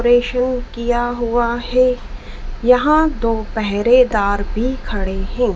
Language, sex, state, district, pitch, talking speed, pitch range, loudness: Hindi, female, Madhya Pradesh, Dhar, 240 Hz, 95 wpm, 220-250 Hz, -17 LUFS